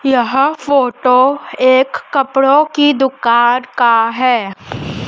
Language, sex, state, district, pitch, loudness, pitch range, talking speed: Hindi, female, Madhya Pradesh, Dhar, 255 Hz, -12 LUFS, 245-275 Hz, 95 wpm